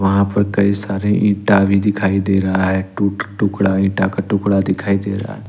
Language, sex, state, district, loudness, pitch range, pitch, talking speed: Hindi, male, Jharkhand, Ranchi, -16 LUFS, 95-100 Hz, 100 Hz, 205 wpm